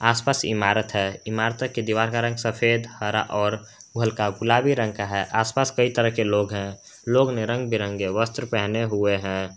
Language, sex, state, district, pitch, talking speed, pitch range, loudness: Hindi, male, Jharkhand, Garhwa, 110 Hz, 190 wpm, 105-115 Hz, -23 LUFS